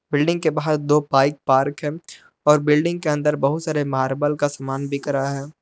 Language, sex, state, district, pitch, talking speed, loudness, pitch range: Hindi, male, Jharkhand, Palamu, 145 Hz, 205 wpm, -20 LUFS, 140-150 Hz